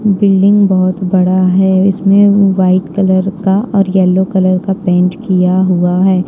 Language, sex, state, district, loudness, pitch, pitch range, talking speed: Hindi, female, Jharkhand, Ranchi, -11 LUFS, 190 Hz, 185-195 Hz, 155 wpm